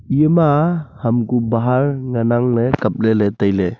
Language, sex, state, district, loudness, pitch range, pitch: Wancho, male, Arunachal Pradesh, Longding, -17 LUFS, 115-140 Hz, 120 Hz